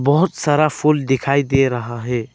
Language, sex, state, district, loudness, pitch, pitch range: Hindi, male, Arunachal Pradesh, Lower Dibang Valley, -17 LUFS, 140 Hz, 125-150 Hz